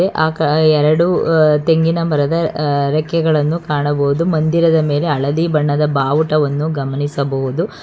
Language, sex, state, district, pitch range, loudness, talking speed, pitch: Kannada, female, Karnataka, Bangalore, 145-165 Hz, -15 LUFS, 105 wpm, 155 Hz